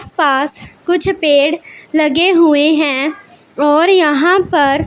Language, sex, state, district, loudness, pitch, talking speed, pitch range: Hindi, female, Punjab, Pathankot, -12 LUFS, 310 Hz, 110 wpm, 295-345 Hz